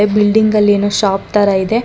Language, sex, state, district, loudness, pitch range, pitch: Kannada, female, Karnataka, Bangalore, -13 LUFS, 200-210 Hz, 205 Hz